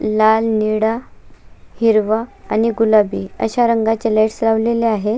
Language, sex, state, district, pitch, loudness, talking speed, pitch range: Marathi, female, Maharashtra, Sindhudurg, 220 Hz, -16 LUFS, 115 wpm, 215-230 Hz